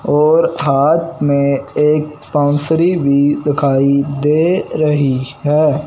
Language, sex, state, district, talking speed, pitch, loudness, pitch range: Hindi, male, Punjab, Fazilka, 100 wpm, 145 Hz, -14 LUFS, 140-155 Hz